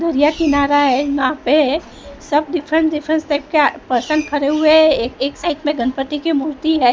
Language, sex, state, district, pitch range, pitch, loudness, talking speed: Hindi, female, Maharashtra, Mumbai Suburban, 285-310 Hz, 295 Hz, -16 LUFS, 190 wpm